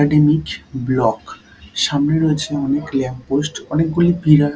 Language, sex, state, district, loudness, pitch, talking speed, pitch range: Bengali, male, West Bengal, Dakshin Dinajpur, -18 LUFS, 145 Hz, 120 wpm, 135-155 Hz